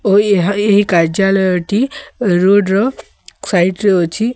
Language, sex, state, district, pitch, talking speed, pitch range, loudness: Odia, female, Odisha, Sambalpur, 200 Hz, 135 wpm, 185-210 Hz, -13 LUFS